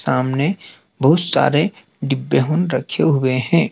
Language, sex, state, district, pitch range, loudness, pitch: Hindi, male, Madhya Pradesh, Dhar, 130-170 Hz, -18 LUFS, 145 Hz